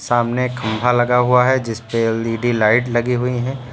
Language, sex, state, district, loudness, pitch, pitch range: Hindi, male, Uttar Pradesh, Lucknow, -17 LUFS, 120 Hz, 115-125 Hz